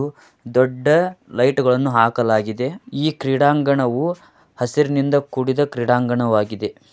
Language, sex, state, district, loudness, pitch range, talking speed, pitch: Kannada, male, Karnataka, Dharwad, -19 LUFS, 120-145 Hz, 70 wpm, 130 Hz